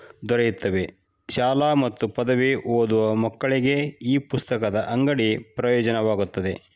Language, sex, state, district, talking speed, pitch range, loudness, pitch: Kannada, male, Karnataka, Shimoga, 90 wpm, 110-130 Hz, -23 LUFS, 120 Hz